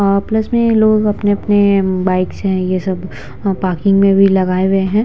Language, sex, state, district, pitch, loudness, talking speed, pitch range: Hindi, female, Bihar, Vaishali, 195 Hz, -14 LUFS, 190 wpm, 185-205 Hz